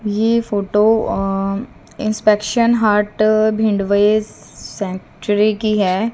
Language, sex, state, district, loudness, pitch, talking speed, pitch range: Hindi, female, Haryana, Jhajjar, -17 LUFS, 210 Hz, 90 wpm, 200-220 Hz